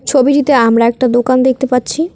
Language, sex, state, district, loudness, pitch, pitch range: Bengali, female, West Bengal, Cooch Behar, -11 LUFS, 255 Hz, 245-275 Hz